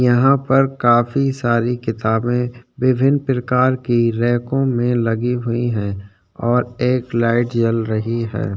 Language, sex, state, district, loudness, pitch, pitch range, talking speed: Hindi, male, Chhattisgarh, Sukma, -18 LUFS, 120 Hz, 115-125 Hz, 135 wpm